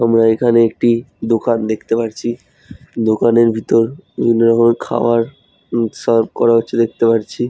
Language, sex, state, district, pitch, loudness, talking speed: Bengali, male, West Bengal, Jhargram, 115 Hz, -15 LUFS, 135 wpm